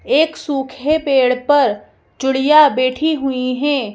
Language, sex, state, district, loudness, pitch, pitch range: Hindi, female, Madhya Pradesh, Bhopal, -15 LUFS, 275 Hz, 265-300 Hz